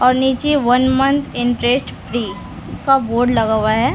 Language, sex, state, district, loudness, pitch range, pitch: Hindi, female, Bihar, Lakhisarai, -16 LUFS, 235-265 Hz, 245 Hz